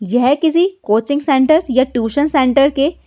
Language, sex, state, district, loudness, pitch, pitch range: Hindi, female, Uttar Pradesh, Hamirpur, -14 LUFS, 275 Hz, 250-300 Hz